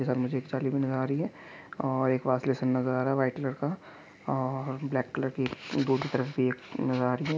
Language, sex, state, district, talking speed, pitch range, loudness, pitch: Hindi, male, Chhattisgarh, Korba, 235 wpm, 130-135 Hz, -30 LUFS, 130 Hz